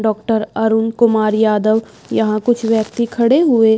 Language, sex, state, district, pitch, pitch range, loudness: Hindi, female, Uttar Pradesh, Budaun, 220 Hz, 220-235 Hz, -15 LUFS